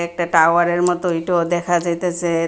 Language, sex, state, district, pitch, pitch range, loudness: Bengali, female, Tripura, West Tripura, 175 Hz, 170-175 Hz, -18 LUFS